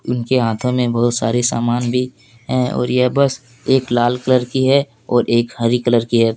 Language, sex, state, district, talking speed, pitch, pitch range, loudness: Hindi, male, Jharkhand, Deoghar, 205 wpm, 120 Hz, 120-125 Hz, -17 LUFS